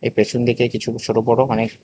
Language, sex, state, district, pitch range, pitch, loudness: Bengali, male, Tripura, West Tripura, 110-120 Hz, 115 Hz, -18 LUFS